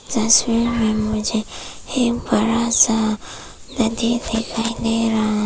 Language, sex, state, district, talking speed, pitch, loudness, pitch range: Hindi, female, Arunachal Pradesh, Papum Pare, 130 wpm, 225 Hz, -19 LUFS, 220-235 Hz